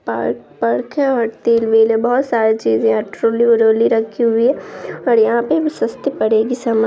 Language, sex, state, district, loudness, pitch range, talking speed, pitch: Hindi, female, Bihar, Araria, -16 LUFS, 225-235 Hz, 165 wpm, 230 Hz